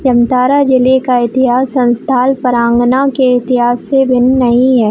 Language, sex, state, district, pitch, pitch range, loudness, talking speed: Hindi, female, Jharkhand, Jamtara, 250 Hz, 245-260 Hz, -11 LUFS, 145 wpm